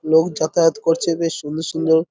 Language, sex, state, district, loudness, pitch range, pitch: Bengali, male, West Bengal, North 24 Parganas, -19 LUFS, 160-165 Hz, 160 Hz